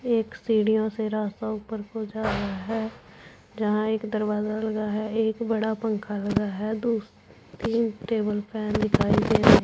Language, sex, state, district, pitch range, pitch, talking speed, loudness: Hindi, female, Punjab, Pathankot, 210-225 Hz, 215 Hz, 155 wpm, -26 LUFS